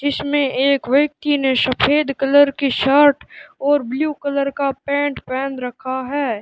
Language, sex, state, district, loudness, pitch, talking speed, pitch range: Hindi, male, Rajasthan, Bikaner, -18 LUFS, 280 Hz, 150 wpm, 265-290 Hz